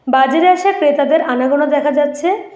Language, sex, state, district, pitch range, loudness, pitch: Bengali, female, West Bengal, Alipurduar, 285-365 Hz, -13 LUFS, 295 Hz